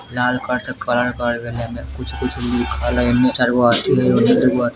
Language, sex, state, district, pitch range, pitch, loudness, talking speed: Hindi, male, Bihar, Muzaffarpur, 120-125 Hz, 120 Hz, -17 LUFS, 215 wpm